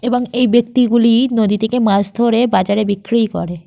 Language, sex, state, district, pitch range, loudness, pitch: Bengali, female, Jharkhand, Sahebganj, 205-240 Hz, -14 LUFS, 230 Hz